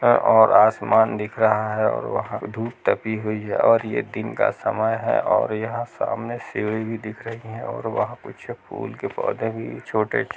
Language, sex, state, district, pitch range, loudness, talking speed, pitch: Hindi, male, Bihar, Gaya, 110-115 Hz, -22 LUFS, 195 wpm, 110 Hz